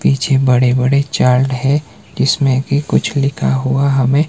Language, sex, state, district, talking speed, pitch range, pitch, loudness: Hindi, male, Himachal Pradesh, Shimla, 155 wpm, 130-140 Hz, 135 Hz, -14 LUFS